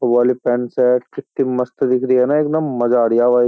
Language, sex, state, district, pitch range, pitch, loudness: Hindi, male, Uttar Pradesh, Jyotiba Phule Nagar, 120-130 Hz, 125 Hz, -17 LUFS